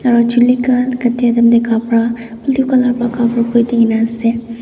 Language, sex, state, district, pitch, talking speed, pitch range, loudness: Nagamese, female, Nagaland, Dimapur, 235 Hz, 170 wpm, 235-245 Hz, -13 LUFS